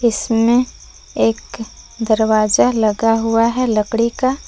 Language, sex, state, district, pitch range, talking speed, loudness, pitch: Hindi, female, Jharkhand, Palamu, 220-235 Hz, 105 wpm, -16 LUFS, 225 Hz